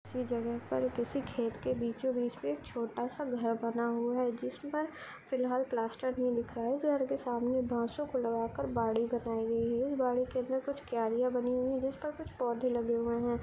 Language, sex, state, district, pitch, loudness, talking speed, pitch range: Hindi, female, Bihar, Gopalganj, 245 Hz, -34 LUFS, 225 wpm, 235-260 Hz